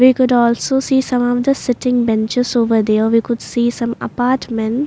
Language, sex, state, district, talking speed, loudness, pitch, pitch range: English, female, Maharashtra, Mumbai Suburban, 195 wpm, -16 LUFS, 245 Hz, 230-255 Hz